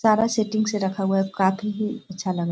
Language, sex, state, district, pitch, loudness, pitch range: Hindi, female, Bihar, Sitamarhi, 205 Hz, -24 LUFS, 190-215 Hz